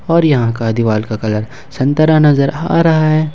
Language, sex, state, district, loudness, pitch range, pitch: Hindi, male, Jharkhand, Ranchi, -13 LUFS, 115-155 Hz, 140 Hz